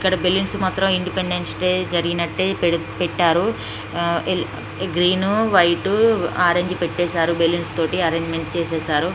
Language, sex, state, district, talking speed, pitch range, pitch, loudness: Telugu, female, Andhra Pradesh, Srikakulam, 110 wpm, 170-185 Hz, 175 Hz, -20 LUFS